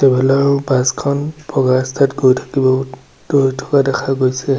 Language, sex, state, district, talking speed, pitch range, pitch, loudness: Assamese, male, Assam, Sonitpur, 130 wpm, 130-140 Hz, 135 Hz, -15 LUFS